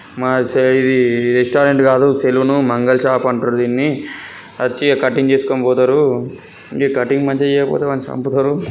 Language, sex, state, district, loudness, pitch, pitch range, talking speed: Telugu, male, Telangana, Karimnagar, -15 LUFS, 130 Hz, 130-140 Hz, 130 wpm